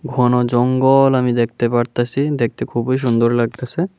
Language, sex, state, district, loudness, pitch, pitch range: Bengali, male, Tripura, West Tripura, -17 LUFS, 125 Hz, 120-135 Hz